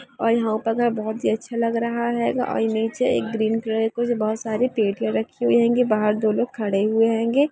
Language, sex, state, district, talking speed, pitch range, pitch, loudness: Hindi, female, Andhra Pradesh, Chittoor, 215 wpm, 215-235 Hz, 225 Hz, -22 LUFS